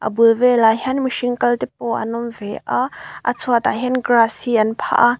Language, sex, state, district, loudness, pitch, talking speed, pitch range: Mizo, female, Mizoram, Aizawl, -18 LUFS, 235 Hz, 220 wpm, 225-245 Hz